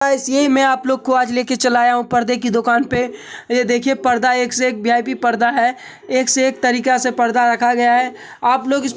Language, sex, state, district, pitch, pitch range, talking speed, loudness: Hindi, male, Uttar Pradesh, Hamirpur, 250 Hz, 240-260 Hz, 255 wpm, -16 LUFS